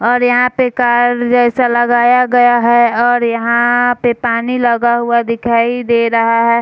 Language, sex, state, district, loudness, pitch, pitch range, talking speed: Hindi, female, Bihar, Sitamarhi, -12 LUFS, 240 Hz, 235-245 Hz, 165 wpm